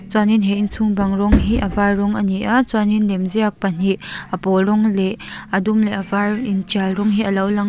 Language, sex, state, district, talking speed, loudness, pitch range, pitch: Mizo, female, Mizoram, Aizawl, 240 wpm, -18 LUFS, 195-215 Hz, 205 Hz